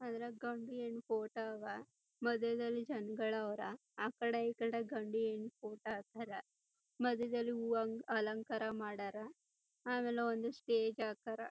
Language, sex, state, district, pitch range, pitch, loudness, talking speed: Kannada, female, Karnataka, Chamarajanagar, 220-235 Hz, 230 Hz, -41 LUFS, 120 wpm